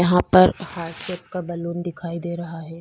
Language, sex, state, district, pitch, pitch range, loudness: Hindi, female, Uttar Pradesh, Budaun, 170 Hz, 170-180 Hz, -22 LUFS